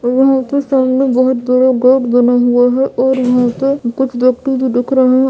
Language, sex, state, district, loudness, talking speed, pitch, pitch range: Hindi, female, Bihar, Purnia, -12 LUFS, 190 wpm, 255 Hz, 245-265 Hz